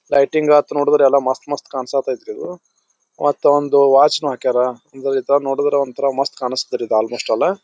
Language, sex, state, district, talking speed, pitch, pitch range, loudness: Kannada, male, Karnataka, Bijapur, 140 wpm, 140 Hz, 130-145 Hz, -17 LUFS